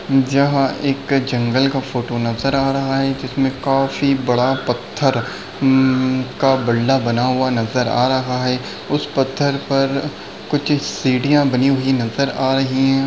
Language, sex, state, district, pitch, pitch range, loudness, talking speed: Hindi, male, Chhattisgarh, Raigarh, 135 Hz, 130-135 Hz, -18 LUFS, 150 wpm